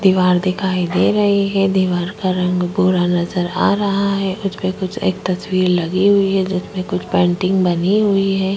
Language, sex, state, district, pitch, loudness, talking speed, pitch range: Hindi, female, Chhattisgarh, Korba, 185 Hz, -17 LUFS, 180 wpm, 180-195 Hz